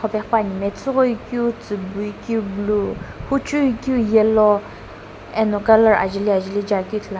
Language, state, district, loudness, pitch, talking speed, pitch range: Sumi, Nagaland, Dimapur, -19 LUFS, 210 Hz, 125 wpm, 200-225 Hz